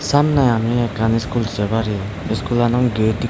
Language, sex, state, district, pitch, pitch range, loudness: Chakma, male, Tripura, Unakoti, 115 Hz, 110-120 Hz, -18 LUFS